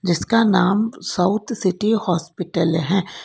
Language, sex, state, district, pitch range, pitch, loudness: Hindi, female, Karnataka, Bangalore, 180-215 Hz, 185 Hz, -20 LUFS